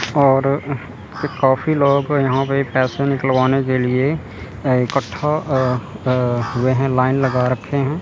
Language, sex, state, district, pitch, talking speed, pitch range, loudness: Hindi, male, Chandigarh, Chandigarh, 135 Hz, 125 wpm, 125-140 Hz, -18 LUFS